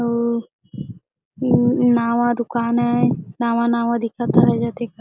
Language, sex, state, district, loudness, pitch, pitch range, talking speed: Surgujia, female, Chhattisgarh, Sarguja, -19 LUFS, 235 Hz, 235-240 Hz, 110 wpm